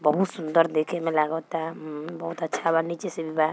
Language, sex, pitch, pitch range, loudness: Bhojpuri, female, 165 Hz, 155-165 Hz, -26 LUFS